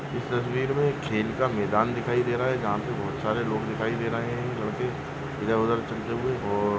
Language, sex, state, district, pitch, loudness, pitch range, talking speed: Hindi, male, Chhattisgarh, Balrampur, 120 Hz, -27 LUFS, 110-125 Hz, 240 wpm